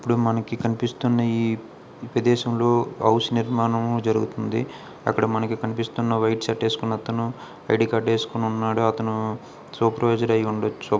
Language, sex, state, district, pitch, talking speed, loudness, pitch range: Telugu, male, Andhra Pradesh, Krishna, 115 Hz, 125 wpm, -23 LUFS, 110-115 Hz